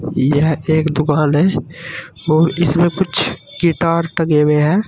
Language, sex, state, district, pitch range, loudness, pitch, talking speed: Hindi, male, Uttar Pradesh, Saharanpur, 150-170 Hz, -15 LUFS, 160 Hz, 135 wpm